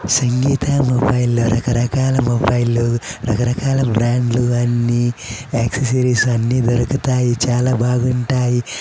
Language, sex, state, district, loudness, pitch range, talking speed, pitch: Telugu, male, Andhra Pradesh, Chittoor, -17 LUFS, 120-130 Hz, 100 wpm, 120 Hz